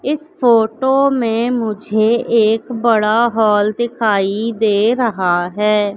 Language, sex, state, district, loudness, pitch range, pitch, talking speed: Hindi, female, Madhya Pradesh, Katni, -15 LUFS, 210-240 Hz, 225 Hz, 110 wpm